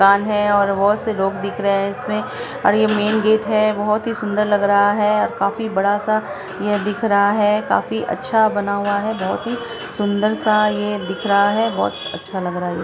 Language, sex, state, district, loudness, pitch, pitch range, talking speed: Hindi, female, Bihar, Saharsa, -18 LUFS, 205 Hz, 200-215 Hz, 290 wpm